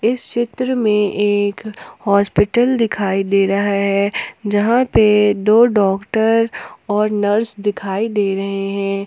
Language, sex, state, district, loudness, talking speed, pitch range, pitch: Hindi, female, Jharkhand, Ranchi, -16 LUFS, 125 wpm, 200-225 Hz, 205 Hz